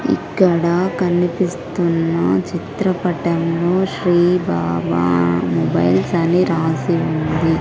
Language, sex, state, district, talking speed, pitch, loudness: Telugu, female, Andhra Pradesh, Sri Satya Sai, 70 wpm, 170 Hz, -17 LUFS